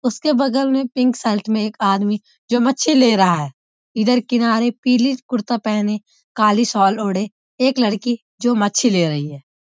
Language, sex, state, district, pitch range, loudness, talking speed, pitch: Hindi, female, Uttarakhand, Uttarkashi, 210-250 Hz, -18 LUFS, 175 wpm, 230 Hz